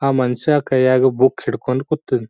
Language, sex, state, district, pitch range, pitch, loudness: Kannada, male, Karnataka, Bijapur, 130-145 Hz, 130 Hz, -17 LUFS